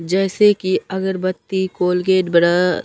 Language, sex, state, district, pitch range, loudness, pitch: Hindi, male, Bihar, Katihar, 180-190 Hz, -17 LUFS, 185 Hz